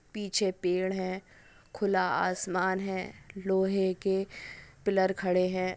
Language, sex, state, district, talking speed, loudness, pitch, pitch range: Hindi, female, Andhra Pradesh, Chittoor, 115 wpm, -30 LUFS, 190 Hz, 185-195 Hz